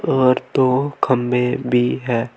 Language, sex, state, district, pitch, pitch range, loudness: Hindi, male, Uttar Pradesh, Saharanpur, 125 Hz, 125-130 Hz, -18 LUFS